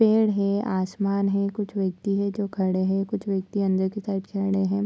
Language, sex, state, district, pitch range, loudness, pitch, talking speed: Hindi, female, Bihar, Bhagalpur, 190-205 Hz, -25 LUFS, 200 Hz, 220 wpm